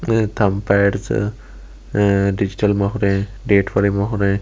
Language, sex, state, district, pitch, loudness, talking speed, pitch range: Hindi, male, Delhi, New Delhi, 100 Hz, -18 LUFS, 110 wpm, 100-105 Hz